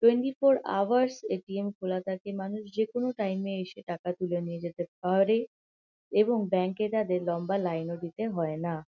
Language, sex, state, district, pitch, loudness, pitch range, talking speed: Bengali, female, West Bengal, Kolkata, 195 Hz, -30 LUFS, 175-220 Hz, 175 wpm